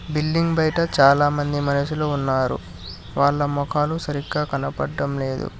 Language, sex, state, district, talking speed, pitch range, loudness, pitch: Telugu, male, Telangana, Hyderabad, 105 wpm, 135-150 Hz, -21 LUFS, 145 Hz